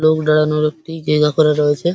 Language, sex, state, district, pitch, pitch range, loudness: Bengali, male, West Bengal, Paschim Medinipur, 155 Hz, 150-155 Hz, -15 LUFS